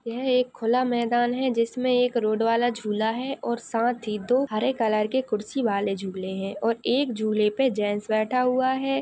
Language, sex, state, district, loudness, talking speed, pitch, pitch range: Hindi, female, Bihar, Jamui, -25 LUFS, 205 wpm, 235 Hz, 215-255 Hz